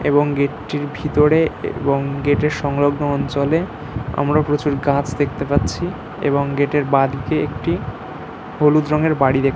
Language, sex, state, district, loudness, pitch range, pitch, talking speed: Bengali, male, West Bengal, North 24 Parganas, -19 LUFS, 140-150 Hz, 145 Hz, 130 wpm